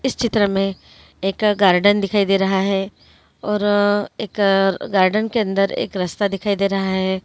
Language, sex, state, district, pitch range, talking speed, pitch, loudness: Hindi, female, Andhra Pradesh, Krishna, 195-205 Hz, 165 wpm, 195 Hz, -18 LUFS